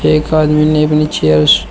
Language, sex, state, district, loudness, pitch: Hindi, male, Uttar Pradesh, Shamli, -11 LUFS, 150 Hz